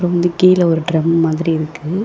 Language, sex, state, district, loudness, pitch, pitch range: Tamil, female, Tamil Nadu, Chennai, -15 LUFS, 165 Hz, 160-175 Hz